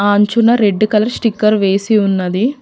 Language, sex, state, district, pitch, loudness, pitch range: Telugu, female, Telangana, Mahabubabad, 215 Hz, -13 LUFS, 205-230 Hz